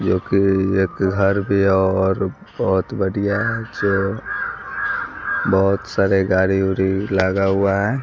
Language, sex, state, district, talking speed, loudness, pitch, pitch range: Hindi, male, Bihar, West Champaran, 135 wpm, -19 LUFS, 95 Hz, 95-100 Hz